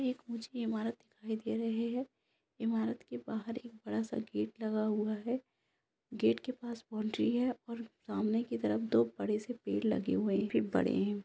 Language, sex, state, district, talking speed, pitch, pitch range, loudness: Hindi, female, Bihar, Saran, 175 wpm, 225 Hz, 215-235 Hz, -36 LUFS